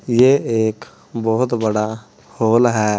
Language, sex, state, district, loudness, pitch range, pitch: Hindi, male, Uttar Pradesh, Saharanpur, -17 LUFS, 110-120 Hz, 115 Hz